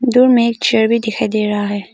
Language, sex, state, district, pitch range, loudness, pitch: Hindi, female, Arunachal Pradesh, Papum Pare, 210-235 Hz, -14 LUFS, 220 Hz